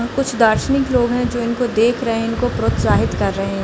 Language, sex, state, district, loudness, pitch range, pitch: Hindi, female, Bihar, Samastipur, -17 LUFS, 195-245 Hz, 230 Hz